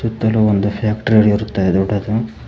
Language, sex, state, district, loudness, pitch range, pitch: Kannada, male, Karnataka, Koppal, -16 LUFS, 100-110 Hz, 105 Hz